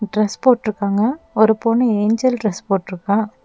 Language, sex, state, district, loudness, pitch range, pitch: Tamil, female, Tamil Nadu, Nilgiris, -18 LUFS, 205-230 Hz, 215 Hz